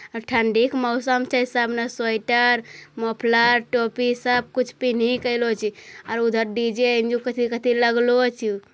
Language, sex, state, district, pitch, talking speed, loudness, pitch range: Angika, female, Bihar, Bhagalpur, 240 Hz, 150 wpm, -21 LUFS, 230-245 Hz